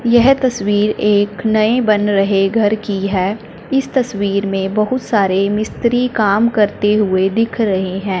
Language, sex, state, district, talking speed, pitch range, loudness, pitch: Hindi, female, Punjab, Fazilka, 155 wpm, 200-230 Hz, -15 LUFS, 210 Hz